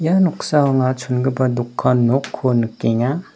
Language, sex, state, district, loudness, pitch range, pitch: Garo, male, Meghalaya, West Garo Hills, -18 LUFS, 125-145 Hz, 130 Hz